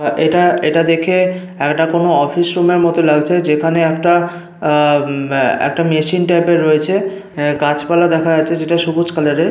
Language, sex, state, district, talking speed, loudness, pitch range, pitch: Bengali, male, Jharkhand, Sahebganj, 160 wpm, -14 LUFS, 150-175 Hz, 165 Hz